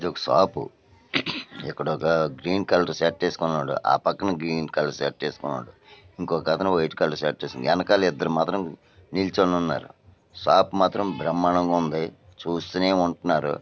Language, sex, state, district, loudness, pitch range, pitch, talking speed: Telugu, male, Andhra Pradesh, Srikakulam, -24 LUFS, 80-95 Hz, 85 Hz, 150 wpm